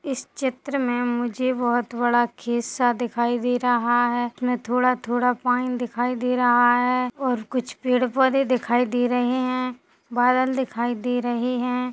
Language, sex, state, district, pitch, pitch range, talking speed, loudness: Hindi, female, Chhattisgarh, Sukma, 245 Hz, 240-250 Hz, 175 wpm, -22 LUFS